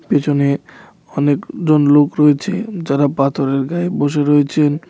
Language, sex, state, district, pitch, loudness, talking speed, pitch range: Bengali, male, Tripura, West Tripura, 145 Hz, -15 LUFS, 110 wpm, 140-155 Hz